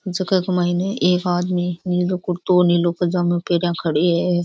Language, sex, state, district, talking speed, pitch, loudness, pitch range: Rajasthani, female, Rajasthan, Churu, 175 wpm, 180 Hz, -19 LUFS, 175-180 Hz